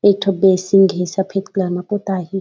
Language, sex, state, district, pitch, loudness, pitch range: Chhattisgarhi, female, Chhattisgarh, Raigarh, 195 Hz, -17 LUFS, 185-195 Hz